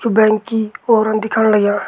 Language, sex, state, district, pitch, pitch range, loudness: Garhwali, male, Uttarakhand, Tehri Garhwal, 220 Hz, 215-225 Hz, -15 LUFS